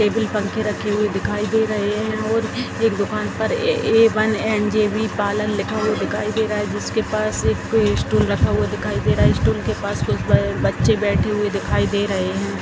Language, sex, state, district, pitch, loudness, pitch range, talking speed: Hindi, female, Bihar, Jahanabad, 210 Hz, -20 LUFS, 200-220 Hz, 210 wpm